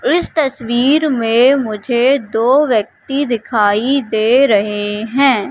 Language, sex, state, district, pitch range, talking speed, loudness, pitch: Hindi, female, Madhya Pradesh, Katni, 220-275 Hz, 110 wpm, -14 LUFS, 245 Hz